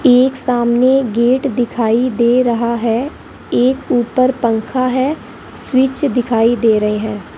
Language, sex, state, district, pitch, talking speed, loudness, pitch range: Hindi, female, Rajasthan, Bikaner, 245 Hz, 130 wpm, -15 LUFS, 235-260 Hz